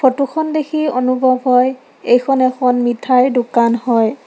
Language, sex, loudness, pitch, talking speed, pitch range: Assamese, female, -15 LUFS, 255 Hz, 125 wpm, 245-270 Hz